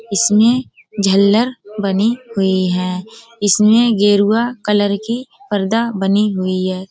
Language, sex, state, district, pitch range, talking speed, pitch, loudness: Hindi, female, Uttar Pradesh, Budaun, 195-230 Hz, 115 wpm, 205 Hz, -15 LUFS